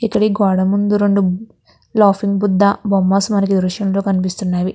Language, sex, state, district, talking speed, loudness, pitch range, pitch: Telugu, female, Andhra Pradesh, Krishna, 140 wpm, -15 LUFS, 190-205 Hz, 200 Hz